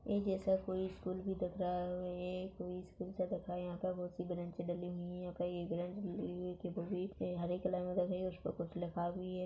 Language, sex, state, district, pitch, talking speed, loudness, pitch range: Hindi, female, Chhattisgarh, Rajnandgaon, 180 Hz, 240 wpm, -41 LUFS, 175-185 Hz